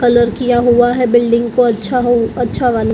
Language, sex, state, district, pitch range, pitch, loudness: Hindi, female, Maharashtra, Mumbai Suburban, 235-245 Hz, 240 Hz, -13 LUFS